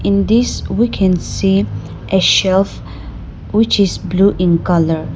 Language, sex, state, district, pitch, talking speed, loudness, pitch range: English, female, Nagaland, Dimapur, 185 Hz, 140 wpm, -14 LUFS, 160-200 Hz